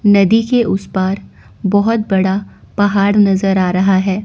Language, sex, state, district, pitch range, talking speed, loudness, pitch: Hindi, female, Chandigarh, Chandigarh, 190-205 Hz, 155 wpm, -14 LUFS, 195 Hz